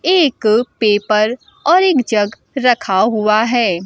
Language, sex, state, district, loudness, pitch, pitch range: Hindi, female, Bihar, Kaimur, -14 LUFS, 230 Hz, 215-270 Hz